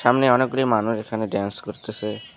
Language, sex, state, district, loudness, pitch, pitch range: Bengali, male, West Bengal, Alipurduar, -22 LUFS, 110 Hz, 105-125 Hz